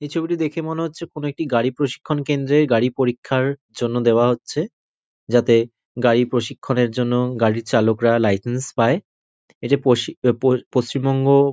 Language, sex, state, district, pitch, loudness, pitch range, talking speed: Bengali, male, West Bengal, North 24 Parganas, 125 Hz, -20 LUFS, 120-140 Hz, 130 wpm